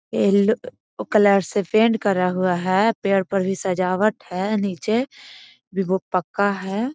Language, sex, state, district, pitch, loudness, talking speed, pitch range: Magahi, female, Bihar, Gaya, 200 Hz, -21 LUFS, 145 wpm, 190-220 Hz